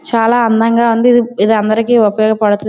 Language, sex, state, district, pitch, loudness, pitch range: Telugu, female, Andhra Pradesh, Srikakulam, 225 Hz, -11 LUFS, 215-235 Hz